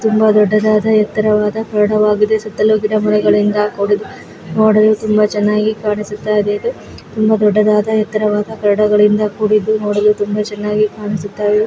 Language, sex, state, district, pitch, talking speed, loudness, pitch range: Kannada, female, Karnataka, Raichur, 210 Hz, 105 wpm, -14 LUFS, 210-215 Hz